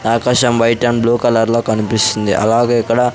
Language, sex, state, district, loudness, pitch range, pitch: Telugu, male, Andhra Pradesh, Sri Satya Sai, -14 LUFS, 110-120 Hz, 115 Hz